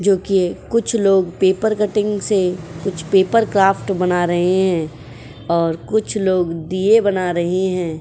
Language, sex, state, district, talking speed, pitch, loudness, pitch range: Hindi, female, Uttar Pradesh, Jyotiba Phule Nagar, 150 wpm, 190 Hz, -17 LUFS, 175-200 Hz